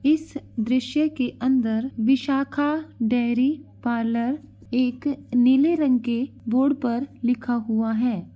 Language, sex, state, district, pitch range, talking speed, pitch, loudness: Hindi, female, Uttar Pradesh, Ghazipur, 240-280 Hz, 115 wpm, 255 Hz, -23 LUFS